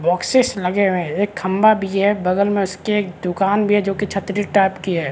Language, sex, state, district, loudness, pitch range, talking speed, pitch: Hindi, male, Chhattisgarh, Rajnandgaon, -18 LUFS, 185-205 Hz, 235 wpm, 195 Hz